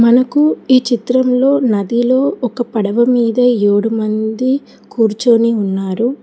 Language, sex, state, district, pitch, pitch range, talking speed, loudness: Telugu, female, Telangana, Hyderabad, 240 Hz, 220-255 Hz, 105 wpm, -14 LUFS